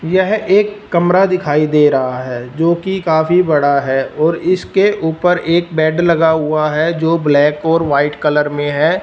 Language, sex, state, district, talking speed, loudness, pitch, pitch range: Hindi, male, Punjab, Fazilka, 175 wpm, -14 LUFS, 160 Hz, 150-175 Hz